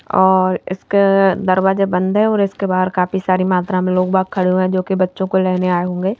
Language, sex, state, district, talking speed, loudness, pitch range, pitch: Hindi, female, Madhya Pradesh, Bhopal, 215 wpm, -16 LUFS, 185-190 Hz, 185 Hz